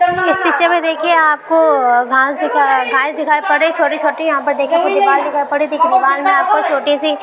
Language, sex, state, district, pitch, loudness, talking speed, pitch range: Hindi, female, Uttar Pradesh, Budaun, 295 Hz, -13 LUFS, 230 wpm, 280-325 Hz